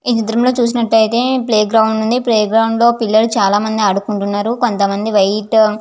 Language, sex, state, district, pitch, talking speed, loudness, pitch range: Telugu, female, Andhra Pradesh, Visakhapatnam, 220 Hz, 185 wpm, -14 LUFS, 210-235 Hz